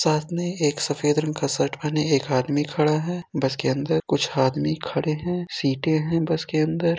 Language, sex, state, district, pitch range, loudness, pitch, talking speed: Hindi, male, Uttar Pradesh, Etah, 145-165 Hz, -23 LUFS, 155 Hz, 205 wpm